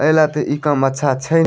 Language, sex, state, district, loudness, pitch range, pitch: Maithili, male, Bihar, Madhepura, -17 LUFS, 140-155 Hz, 150 Hz